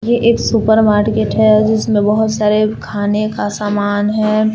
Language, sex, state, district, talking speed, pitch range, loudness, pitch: Hindi, female, Jharkhand, Palamu, 160 wpm, 210-220 Hz, -14 LUFS, 215 Hz